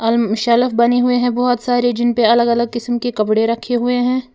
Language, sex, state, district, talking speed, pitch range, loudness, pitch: Hindi, female, Uttar Pradesh, Lalitpur, 220 wpm, 235-245 Hz, -16 LUFS, 240 Hz